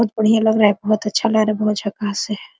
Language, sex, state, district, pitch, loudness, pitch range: Hindi, female, Jharkhand, Sahebganj, 215 Hz, -18 LUFS, 210-220 Hz